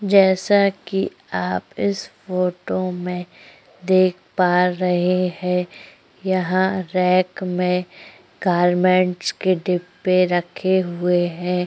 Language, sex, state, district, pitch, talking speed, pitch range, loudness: Hindi, female, Uttar Pradesh, Jyotiba Phule Nagar, 180 Hz, 100 wpm, 180-185 Hz, -20 LUFS